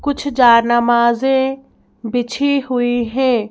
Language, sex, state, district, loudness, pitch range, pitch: Hindi, female, Madhya Pradesh, Bhopal, -15 LUFS, 235-270 Hz, 245 Hz